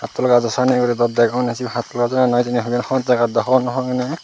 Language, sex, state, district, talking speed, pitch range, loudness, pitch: Chakma, male, Tripura, Unakoti, 310 wpm, 120-125 Hz, -18 LUFS, 125 Hz